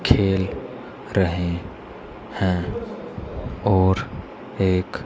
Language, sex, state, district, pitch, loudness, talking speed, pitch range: Hindi, male, Haryana, Rohtak, 95 Hz, -23 LUFS, 60 wpm, 90-95 Hz